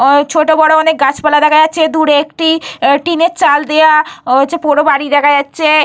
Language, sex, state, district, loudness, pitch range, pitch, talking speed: Bengali, female, Jharkhand, Jamtara, -10 LUFS, 290-315 Hz, 305 Hz, 165 wpm